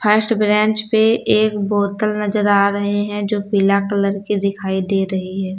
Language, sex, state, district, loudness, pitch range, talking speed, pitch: Hindi, female, Jharkhand, Deoghar, -17 LUFS, 200-210 Hz, 185 wpm, 205 Hz